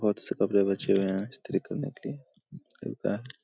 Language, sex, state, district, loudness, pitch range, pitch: Hindi, male, Bihar, Saharsa, -30 LUFS, 95-105 Hz, 100 Hz